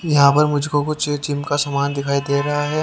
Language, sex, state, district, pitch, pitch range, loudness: Hindi, male, Haryana, Jhajjar, 145 Hz, 140-150 Hz, -19 LUFS